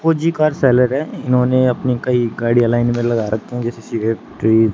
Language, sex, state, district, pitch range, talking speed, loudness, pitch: Hindi, male, Haryana, Charkhi Dadri, 115-125 Hz, 190 wpm, -17 LUFS, 120 Hz